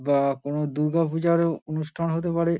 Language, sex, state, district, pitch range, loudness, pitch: Bengali, male, West Bengal, Dakshin Dinajpur, 150-170 Hz, -25 LUFS, 160 Hz